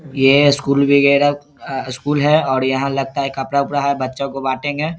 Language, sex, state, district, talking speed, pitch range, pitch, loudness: Hindi, male, Bihar, Saharsa, 190 wpm, 135-145 Hz, 140 Hz, -16 LUFS